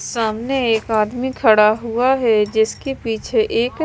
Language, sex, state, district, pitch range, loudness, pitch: Hindi, female, Himachal Pradesh, Shimla, 220-260 Hz, -17 LUFS, 230 Hz